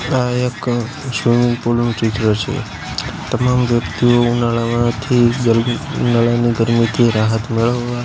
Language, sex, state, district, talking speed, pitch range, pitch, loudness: Gujarati, male, Gujarat, Gandhinagar, 110 wpm, 115-120 Hz, 120 Hz, -16 LUFS